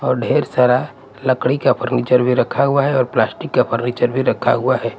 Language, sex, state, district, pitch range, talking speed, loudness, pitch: Hindi, male, Punjab, Pathankot, 125-135 Hz, 215 wpm, -17 LUFS, 130 Hz